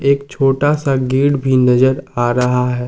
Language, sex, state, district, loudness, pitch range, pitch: Hindi, male, Jharkhand, Ranchi, -15 LUFS, 125-140 Hz, 130 Hz